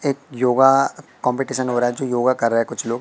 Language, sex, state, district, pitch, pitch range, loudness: Hindi, male, Madhya Pradesh, Katni, 125 Hz, 120-135 Hz, -19 LUFS